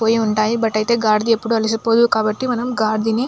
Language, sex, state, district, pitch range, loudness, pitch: Telugu, female, Andhra Pradesh, Anantapur, 215-230 Hz, -17 LUFS, 225 Hz